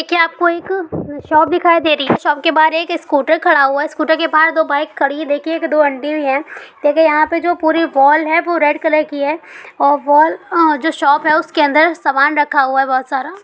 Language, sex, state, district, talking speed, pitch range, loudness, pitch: Hindi, female, Bihar, Sitamarhi, 240 wpm, 290-330 Hz, -14 LUFS, 310 Hz